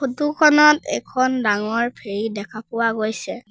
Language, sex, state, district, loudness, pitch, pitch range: Assamese, female, Assam, Sonitpur, -19 LUFS, 235 Hz, 215-270 Hz